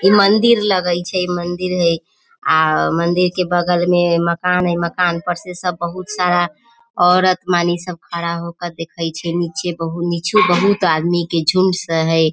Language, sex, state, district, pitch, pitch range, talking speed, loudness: Maithili, female, Bihar, Samastipur, 175 Hz, 170-185 Hz, 170 wpm, -17 LUFS